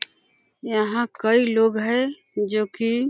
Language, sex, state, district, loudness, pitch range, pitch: Hindi, female, Uttar Pradesh, Deoria, -22 LUFS, 215-240 Hz, 230 Hz